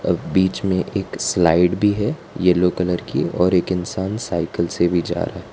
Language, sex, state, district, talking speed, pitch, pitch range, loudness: Hindi, female, Gujarat, Valsad, 205 wpm, 90 Hz, 90-95 Hz, -20 LUFS